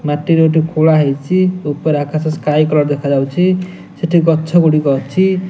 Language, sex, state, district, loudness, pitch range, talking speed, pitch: Odia, male, Odisha, Nuapada, -14 LUFS, 145-175 Hz, 140 wpm, 155 Hz